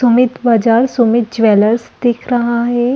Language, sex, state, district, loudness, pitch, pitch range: Hindi, female, Chhattisgarh, Rajnandgaon, -13 LUFS, 235 Hz, 230-245 Hz